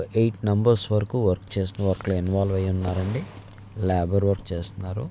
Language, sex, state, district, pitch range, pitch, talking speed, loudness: Telugu, male, Andhra Pradesh, Visakhapatnam, 95-105 Hz, 100 Hz, 155 wpm, -25 LUFS